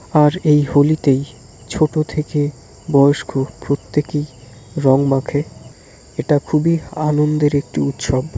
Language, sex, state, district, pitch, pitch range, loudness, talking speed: Bengali, male, West Bengal, Kolkata, 145 Hz, 135-150 Hz, -17 LUFS, 85 wpm